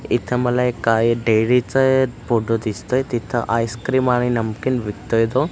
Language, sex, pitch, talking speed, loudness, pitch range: Marathi, male, 120 Hz, 150 wpm, -19 LUFS, 115-125 Hz